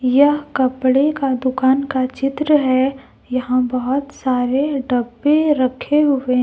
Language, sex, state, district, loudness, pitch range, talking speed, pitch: Hindi, female, Jharkhand, Deoghar, -17 LUFS, 255-280 Hz, 130 wpm, 260 Hz